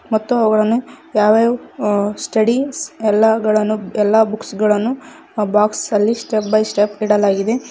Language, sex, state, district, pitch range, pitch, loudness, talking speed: Kannada, female, Karnataka, Koppal, 210-235 Hz, 215 Hz, -16 LUFS, 125 wpm